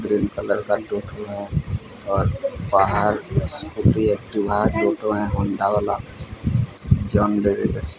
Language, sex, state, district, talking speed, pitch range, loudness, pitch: Hindi, male, Odisha, Sambalpur, 110 wpm, 100-105 Hz, -22 LUFS, 105 Hz